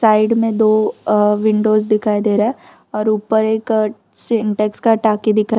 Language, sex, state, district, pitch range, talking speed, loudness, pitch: Hindi, female, Gujarat, Valsad, 210-220 Hz, 170 wpm, -16 LUFS, 215 Hz